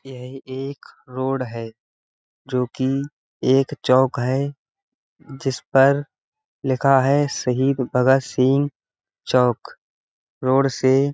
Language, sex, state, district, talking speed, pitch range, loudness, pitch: Hindi, male, Uttar Pradesh, Budaun, 95 wpm, 130-140 Hz, -20 LUFS, 135 Hz